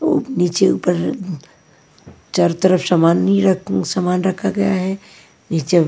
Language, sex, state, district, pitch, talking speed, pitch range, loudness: Hindi, female, Punjab, Pathankot, 180 Hz, 125 wpm, 165-190 Hz, -17 LUFS